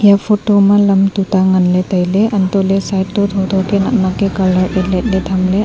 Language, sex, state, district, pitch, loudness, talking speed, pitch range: Wancho, female, Arunachal Pradesh, Longding, 195 Hz, -13 LUFS, 190 wpm, 190-200 Hz